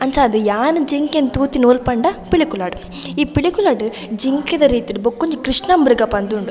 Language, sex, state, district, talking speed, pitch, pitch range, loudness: Tulu, female, Karnataka, Dakshina Kannada, 145 wpm, 270 Hz, 235-305 Hz, -16 LUFS